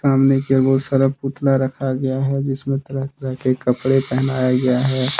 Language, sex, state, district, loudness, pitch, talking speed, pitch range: Hindi, male, Jharkhand, Deoghar, -19 LUFS, 135 Hz, 185 wpm, 130-135 Hz